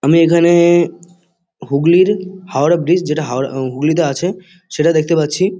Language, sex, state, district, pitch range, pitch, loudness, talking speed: Bengali, male, West Bengal, Kolkata, 155-180 Hz, 170 Hz, -14 LUFS, 160 wpm